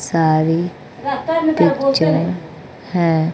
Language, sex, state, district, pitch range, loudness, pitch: Hindi, female, Bihar, West Champaran, 160-270 Hz, -17 LUFS, 170 Hz